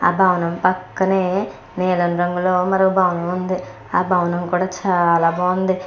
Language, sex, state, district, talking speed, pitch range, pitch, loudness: Telugu, female, Andhra Pradesh, Krishna, 135 wpm, 175-185 Hz, 180 Hz, -18 LUFS